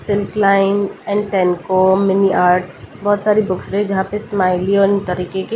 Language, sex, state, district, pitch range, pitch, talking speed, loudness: Hindi, female, Delhi, New Delhi, 185-205 Hz, 195 Hz, 95 wpm, -16 LUFS